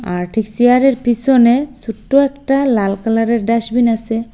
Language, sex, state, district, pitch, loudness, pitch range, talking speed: Bengali, female, Assam, Hailakandi, 235 Hz, -14 LUFS, 225-260 Hz, 140 wpm